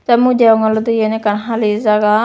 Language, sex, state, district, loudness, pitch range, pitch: Chakma, female, Tripura, West Tripura, -13 LUFS, 215-230 Hz, 220 Hz